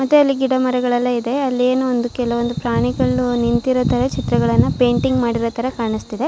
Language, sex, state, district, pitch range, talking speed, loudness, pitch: Kannada, female, Karnataka, Shimoga, 230-255 Hz, 165 wpm, -18 LUFS, 245 Hz